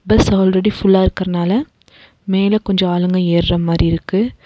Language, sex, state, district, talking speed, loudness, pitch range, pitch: Tamil, female, Tamil Nadu, Nilgiris, 150 wpm, -15 LUFS, 175-200 Hz, 190 Hz